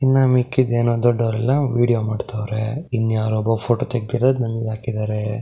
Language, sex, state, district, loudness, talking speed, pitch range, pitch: Kannada, male, Karnataka, Shimoga, -20 LUFS, 120 wpm, 110-125 Hz, 120 Hz